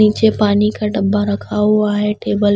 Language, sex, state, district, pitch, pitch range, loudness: Hindi, female, Punjab, Pathankot, 210 Hz, 205-210 Hz, -15 LUFS